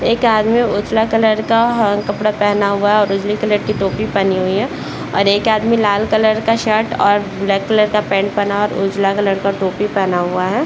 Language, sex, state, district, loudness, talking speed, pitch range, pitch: Hindi, female, Bihar, Saran, -15 LUFS, 230 wpm, 200-220 Hz, 205 Hz